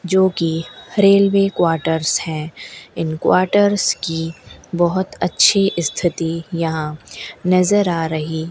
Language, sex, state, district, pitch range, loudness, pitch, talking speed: Hindi, female, Rajasthan, Bikaner, 160-190 Hz, -17 LUFS, 170 Hz, 105 wpm